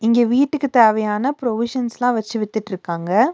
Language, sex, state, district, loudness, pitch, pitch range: Tamil, female, Tamil Nadu, Nilgiris, -19 LUFS, 230 Hz, 215-250 Hz